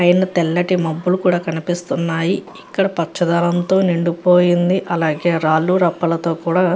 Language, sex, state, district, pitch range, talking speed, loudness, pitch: Telugu, female, Andhra Pradesh, Chittoor, 165-180 Hz, 125 wpm, -17 LUFS, 175 Hz